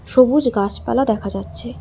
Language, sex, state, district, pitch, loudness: Bengali, female, West Bengal, Alipurduar, 200 Hz, -18 LUFS